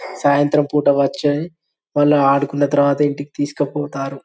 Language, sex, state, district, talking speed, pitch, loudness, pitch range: Telugu, male, Telangana, Karimnagar, 115 wpm, 145 Hz, -17 LUFS, 140-145 Hz